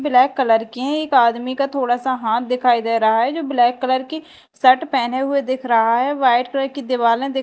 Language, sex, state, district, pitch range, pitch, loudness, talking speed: Hindi, female, Madhya Pradesh, Dhar, 240-275 Hz, 255 Hz, -18 LUFS, 240 wpm